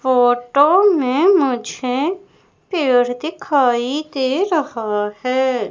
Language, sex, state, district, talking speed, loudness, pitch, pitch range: Hindi, female, Madhya Pradesh, Umaria, 85 wpm, -17 LUFS, 265 Hz, 245-315 Hz